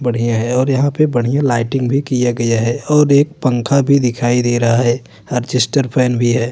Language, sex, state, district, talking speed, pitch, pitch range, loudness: Hindi, male, Uttar Pradesh, Hamirpur, 210 wpm, 125 Hz, 120-140 Hz, -15 LUFS